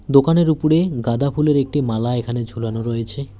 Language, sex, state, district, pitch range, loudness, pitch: Bengali, male, West Bengal, Alipurduar, 115-150 Hz, -19 LUFS, 135 Hz